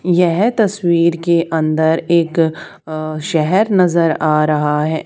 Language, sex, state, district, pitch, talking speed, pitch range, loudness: Hindi, male, Haryana, Charkhi Dadri, 165 Hz, 130 wpm, 155-175 Hz, -15 LUFS